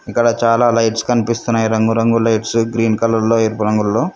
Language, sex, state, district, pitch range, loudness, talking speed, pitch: Telugu, male, Telangana, Mahabubabad, 110-115 Hz, -15 LUFS, 175 wpm, 115 Hz